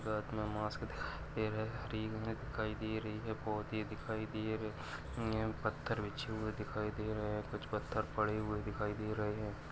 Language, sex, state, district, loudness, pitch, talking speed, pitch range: Hindi, male, Maharashtra, Sindhudurg, -40 LUFS, 110 Hz, 215 wpm, 105-110 Hz